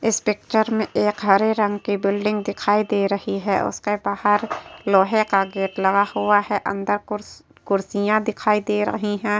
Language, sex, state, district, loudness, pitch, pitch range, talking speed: Hindi, female, Uttar Pradesh, Etah, -21 LUFS, 205 Hz, 200-210 Hz, 170 wpm